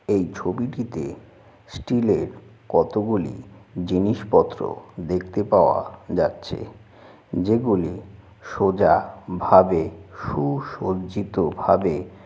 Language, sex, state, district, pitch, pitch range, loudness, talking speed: Bengali, male, West Bengal, Jalpaiguri, 95 Hz, 90-105 Hz, -22 LUFS, 70 wpm